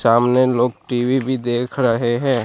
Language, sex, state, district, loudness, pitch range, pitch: Hindi, male, Gujarat, Gandhinagar, -18 LUFS, 120-130 Hz, 125 Hz